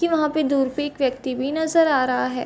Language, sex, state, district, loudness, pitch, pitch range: Hindi, female, Chhattisgarh, Bilaspur, -21 LUFS, 285 Hz, 260-310 Hz